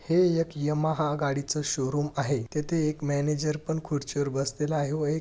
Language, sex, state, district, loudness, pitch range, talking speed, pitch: Marathi, male, Maharashtra, Dhule, -28 LUFS, 145-155 Hz, 175 wpm, 150 Hz